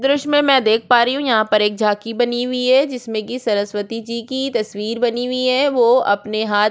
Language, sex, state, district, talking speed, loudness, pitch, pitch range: Hindi, female, Chhattisgarh, Korba, 250 wpm, -17 LUFS, 235 Hz, 215-255 Hz